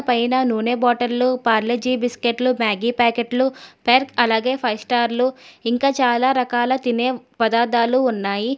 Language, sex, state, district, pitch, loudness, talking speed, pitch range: Telugu, female, Telangana, Hyderabad, 245 Hz, -19 LUFS, 125 wpm, 235-255 Hz